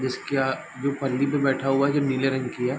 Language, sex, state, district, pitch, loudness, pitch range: Hindi, male, Bihar, Gopalganj, 135 Hz, -24 LUFS, 130-140 Hz